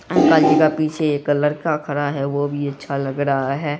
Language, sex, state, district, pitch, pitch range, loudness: Hindi, female, Bihar, Araria, 145 Hz, 140-155 Hz, -19 LUFS